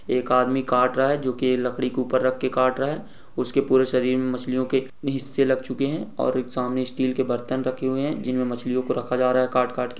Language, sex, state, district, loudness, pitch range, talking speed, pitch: Hindi, male, Bihar, Lakhisarai, -23 LUFS, 125-130 Hz, 260 wpm, 130 Hz